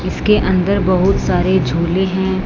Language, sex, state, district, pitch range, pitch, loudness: Hindi, female, Punjab, Fazilka, 185-190 Hz, 190 Hz, -15 LUFS